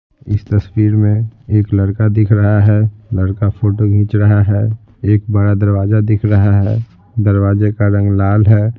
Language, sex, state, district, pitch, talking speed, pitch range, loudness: Hindi, male, Bihar, Patna, 105 Hz, 165 wpm, 100-110 Hz, -13 LUFS